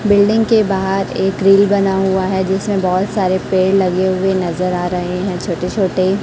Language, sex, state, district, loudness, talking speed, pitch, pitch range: Hindi, female, Chhattisgarh, Raipur, -15 LUFS, 195 wpm, 190 Hz, 185-195 Hz